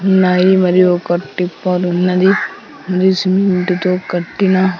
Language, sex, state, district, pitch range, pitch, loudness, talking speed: Telugu, male, Andhra Pradesh, Sri Satya Sai, 180-190 Hz, 185 Hz, -14 LUFS, 100 wpm